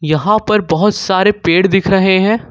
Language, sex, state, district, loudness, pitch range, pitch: Hindi, male, Jharkhand, Ranchi, -12 LUFS, 185-210 Hz, 195 Hz